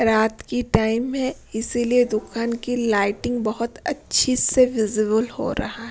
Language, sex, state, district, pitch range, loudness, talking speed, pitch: Hindi, female, Punjab, Pathankot, 220-245 Hz, -22 LUFS, 150 wpm, 235 Hz